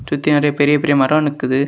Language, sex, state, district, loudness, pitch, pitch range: Tamil, male, Tamil Nadu, Kanyakumari, -15 LUFS, 145 Hz, 140-150 Hz